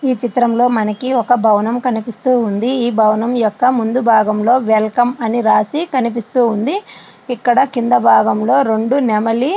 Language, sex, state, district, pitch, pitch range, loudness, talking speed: Telugu, female, Andhra Pradesh, Srikakulam, 235 Hz, 220-250 Hz, -14 LUFS, 125 wpm